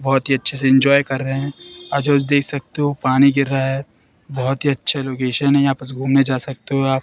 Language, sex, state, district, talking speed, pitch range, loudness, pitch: Hindi, female, Madhya Pradesh, Katni, 255 wpm, 135-140 Hz, -18 LUFS, 135 Hz